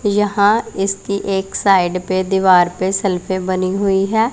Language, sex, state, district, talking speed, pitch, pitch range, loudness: Hindi, female, Punjab, Pathankot, 150 wpm, 195 Hz, 185-200 Hz, -16 LUFS